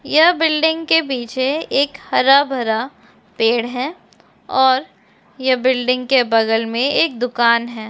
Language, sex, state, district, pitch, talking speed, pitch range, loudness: Hindi, female, Chhattisgarh, Bilaspur, 260 Hz, 135 wpm, 235-280 Hz, -17 LUFS